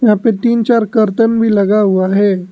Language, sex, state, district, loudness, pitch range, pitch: Hindi, male, Arunachal Pradesh, Lower Dibang Valley, -12 LUFS, 200-230 Hz, 215 Hz